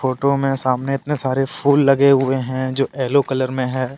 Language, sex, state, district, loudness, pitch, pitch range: Hindi, male, Jharkhand, Deoghar, -18 LUFS, 135 Hz, 130-140 Hz